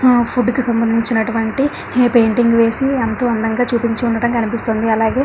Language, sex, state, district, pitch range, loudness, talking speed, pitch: Telugu, female, Andhra Pradesh, Srikakulam, 225-245 Hz, -15 LUFS, 160 wpm, 235 Hz